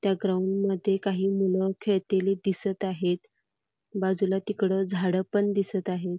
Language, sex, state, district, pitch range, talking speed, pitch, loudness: Marathi, female, Karnataka, Belgaum, 190-195 Hz, 115 wpm, 195 Hz, -27 LUFS